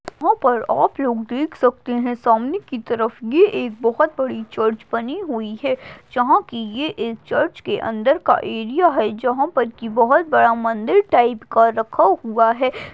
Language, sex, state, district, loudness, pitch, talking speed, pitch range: Hindi, female, Maharashtra, Aurangabad, -19 LUFS, 245 Hz, 185 wpm, 230-290 Hz